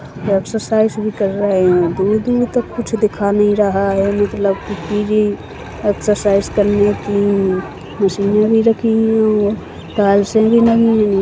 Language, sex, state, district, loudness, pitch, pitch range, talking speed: Hindi, female, Chhattisgarh, Rajnandgaon, -15 LUFS, 205 Hz, 200-220 Hz, 140 wpm